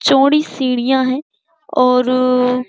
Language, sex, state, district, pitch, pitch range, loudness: Hindi, female, Uttar Pradesh, Jyotiba Phule Nagar, 255 Hz, 250-270 Hz, -15 LUFS